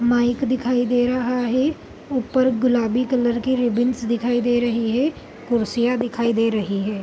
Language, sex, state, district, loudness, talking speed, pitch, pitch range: Hindi, female, Bihar, Gopalganj, -21 LUFS, 160 wpm, 245 Hz, 235-250 Hz